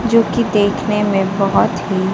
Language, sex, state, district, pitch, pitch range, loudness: Hindi, female, Bihar, Kaimur, 205 Hz, 195-225 Hz, -16 LUFS